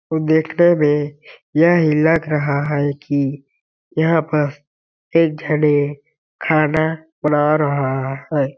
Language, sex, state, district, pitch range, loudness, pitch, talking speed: Hindi, male, Chhattisgarh, Balrampur, 145-160 Hz, -17 LUFS, 150 Hz, 110 wpm